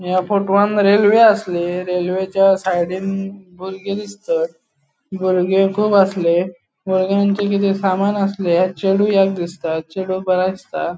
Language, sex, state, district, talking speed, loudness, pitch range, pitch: Konkani, male, Goa, North and South Goa, 115 wpm, -17 LUFS, 185-200 Hz, 190 Hz